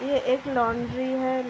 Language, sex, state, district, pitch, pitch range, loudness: Hindi, female, Uttar Pradesh, Hamirpur, 260 Hz, 250-260 Hz, -26 LUFS